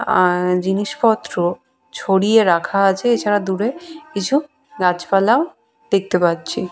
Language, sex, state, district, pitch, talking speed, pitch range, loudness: Bengali, female, West Bengal, Purulia, 200 Hz, 100 wpm, 180-240 Hz, -18 LUFS